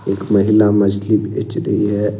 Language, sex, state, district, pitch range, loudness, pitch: Hindi, male, Jharkhand, Ranchi, 100-105 Hz, -16 LUFS, 105 Hz